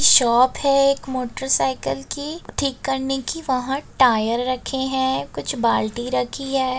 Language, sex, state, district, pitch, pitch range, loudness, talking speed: Hindi, female, Bihar, Begusarai, 260 Hz, 240-270 Hz, -21 LUFS, 160 wpm